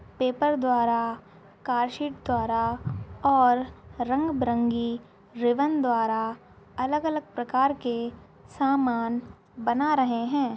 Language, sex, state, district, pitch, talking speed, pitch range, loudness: Hindi, female, Chhattisgarh, Rajnandgaon, 245 Hz, 95 wpm, 235-275 Hz, -26 LUFS